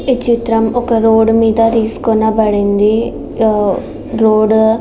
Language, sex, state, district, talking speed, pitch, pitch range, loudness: Telugu, female, Andhra Pradesh, Srikakulam, 125 wpm, 225 Hz, 220-230 Hz, -12 LUFS